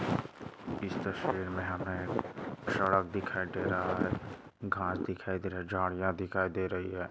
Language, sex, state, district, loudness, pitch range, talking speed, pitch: Hindi, male, Maharashtra, Aurangabad, -34 LUFS, 90-95 Hz, 160 wpm, 95 Hz